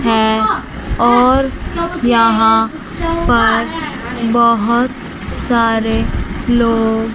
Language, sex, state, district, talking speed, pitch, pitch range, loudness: Hindi, female, Chandigarh, Chandigarh, 65 wpm, 235 Hz, 225-245 Hz, -14 LUFS